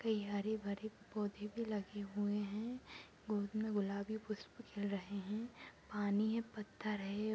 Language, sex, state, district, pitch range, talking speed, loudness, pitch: Hindi, female, Maharashtra, Sindhudurg, 205-220 Hz, 145 wpm, -42 LUFS, 210 Hz